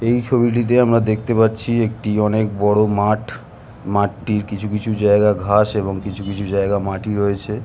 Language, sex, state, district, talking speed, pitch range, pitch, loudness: Bengali, male, West Bengal, Jhargram, 165 wpm, 100-110 Hz, 105 Hz, -18 LUFS